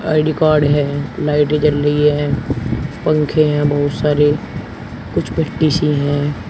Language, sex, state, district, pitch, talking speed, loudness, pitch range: Hindi, male, Uttar Pradesh, Shamli, 145 Hz, 120 wpm, -16 LUFS, 145-155 Hz